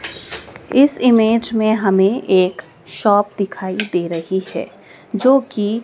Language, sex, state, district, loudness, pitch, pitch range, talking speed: Hindi, female, Madhya Pradesh, Dhar, -16 LUFS, 210 Hz, 190-230 Hz, 125 wpm